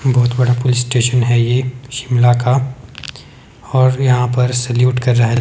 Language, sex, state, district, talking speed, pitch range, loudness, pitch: Hindi, male, Himachal Pradesh, Shimla, 155 wpm, 120-130 Hz, -14 LUFS, 125 Hz